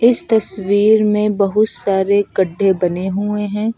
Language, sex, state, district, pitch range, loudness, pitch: Hindi, female, Uttar Pradesh, Lucknow, 195-215 Hz, -15 LUFS, 205 Hz